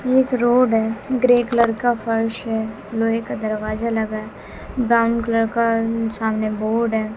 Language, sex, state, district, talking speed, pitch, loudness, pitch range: Hindi, female, Bihar, West Champaran, 150 wpm, 225 Hz, -20 LUFS, 220-235 Hz